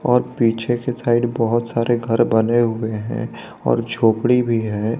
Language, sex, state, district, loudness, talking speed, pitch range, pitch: Hindi, male, Jharkhand, Garhwa, -19 LUFS, 170 wpm, 115-120 Hz, 115 Hz